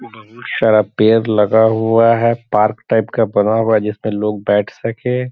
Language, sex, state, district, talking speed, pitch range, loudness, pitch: Hindi, male, Bihar, Sitamarhi, 180 wpm, 105-115 Hz, -15 LUFS, 110 Hz